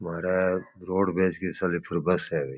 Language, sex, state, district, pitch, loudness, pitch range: Marwari, male, Rajasthan, Churu, 90 Hz, -27 LUFS, 85-95 Hz